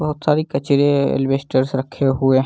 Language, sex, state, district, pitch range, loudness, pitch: Hindi, male, Uttar Pradesh, Gorakhpur, 135-145 Hz, -18 LUFS, 135 Hz